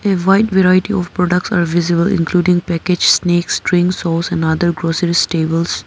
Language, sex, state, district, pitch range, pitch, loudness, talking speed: English, female, Arunachal Pradesh, Papum Pare, 170-185 Hz, 175 Hz, -14 LUFS, 165 wpm